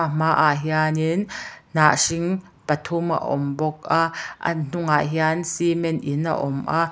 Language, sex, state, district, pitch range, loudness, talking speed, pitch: Mizo, female, Mizoram, Aizawl, 150-165 Hz, -22 LUFS, 155 wpm, 160 Hz